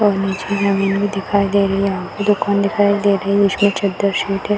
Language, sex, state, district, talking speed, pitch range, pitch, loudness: Hindi, female, Uttar Pradesh, Varanasi, 260 wpm, 195-205 Hz, 200 Hz, -17 LUFS